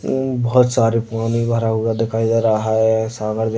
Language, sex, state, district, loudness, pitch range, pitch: Hindi, male, Uttar Pradesh, Deoria, -18 LUFS, 110-115 Hz, 115 Hz